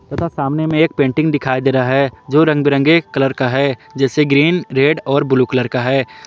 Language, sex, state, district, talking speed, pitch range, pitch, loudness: Hindi, male, Jharkhand, Palamu, 210 wpm, 130-150 Hz, 140 Hz, -15 LUFS